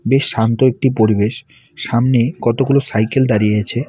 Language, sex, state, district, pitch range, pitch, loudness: Bengali, male, West Bengal, Alipurduar, 110-135 Hz, 120 Hz, -15 LUFS